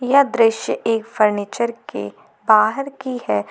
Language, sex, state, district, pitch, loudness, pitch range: Hindi, female, Jharkhand, Garhwa, 225 Hz, -19 LUFS, 210-250 Hz